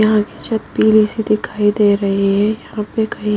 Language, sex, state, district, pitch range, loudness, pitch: Hindi, female, Bihar, Katihar, 205-215 Hz, -16 LUFS, 210 Hz